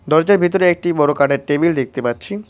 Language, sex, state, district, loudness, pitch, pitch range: Bengali, male, West Bengal, Cooch Behar, -16 LUFS, 155 Hz, 140-175 Hz